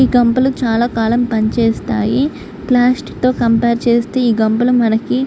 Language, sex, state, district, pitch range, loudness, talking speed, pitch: Telugu, female, Andhra Pradesh, Guntur, 225-255 Hz, -14 LUFS, 115 wpm, 240 Hz